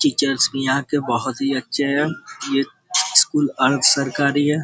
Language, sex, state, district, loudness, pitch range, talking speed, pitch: Hindi, male, Uttar Pradesh, Gorakhpur, -19 LUFS, 130-145 Hz, 170 wpm, 140 Hz